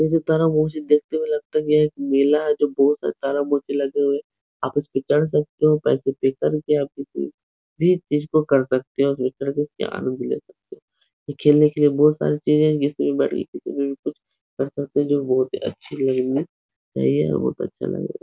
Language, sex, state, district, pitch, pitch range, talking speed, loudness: Hindi, male, Uttar Pradesh, Etah, 145 Hz, 135-150 Hz, 165 wpm, -21 LUFS